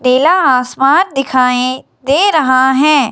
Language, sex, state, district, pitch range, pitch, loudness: Hindi, male, Himachal Pradesh, Shimla, 255-280 Hz, 265 Hz, -11 LUFS